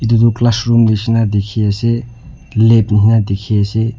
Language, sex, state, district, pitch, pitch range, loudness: Nagamese, male, Nagaland, Dimapur, 115 Hz, 105-115 Hz, -13 LUFS